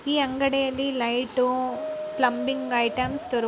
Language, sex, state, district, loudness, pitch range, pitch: Kannada, female, Karnataka, Raichur, -25 LUFS, 250-280 Hz, 265 Hz